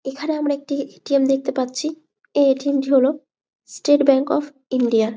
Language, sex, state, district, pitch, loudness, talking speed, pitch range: Bengali, female, West Bengal, Malda, 275 Hz, -20 LUFS, 210 wpm, 265-290 Hz